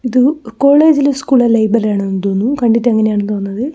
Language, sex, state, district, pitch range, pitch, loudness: Malayalam, female, Kerala, Kozhikode, 210-275 Hz, 235 Hz, -13 LUFS